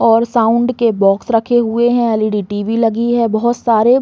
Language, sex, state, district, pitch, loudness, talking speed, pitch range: Hindi, female, Uttar Pradesh, Muzaffarnagar, 230 Hz, -14 LUFS, 210 wpm, 220-240 Hz